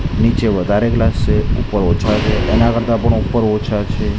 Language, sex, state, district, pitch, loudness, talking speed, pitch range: Gujarati, male, Gujarat, Gandhinagar, 110 Hz, -16 LUFS, 185 wpm, 105-115 Hz